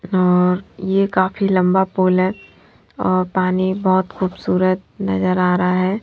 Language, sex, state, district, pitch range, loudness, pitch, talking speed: Hindi, female, Haryana, Jhajjar, 180-190 Hz, -18 LUFS, 185 Hz, 140 wpm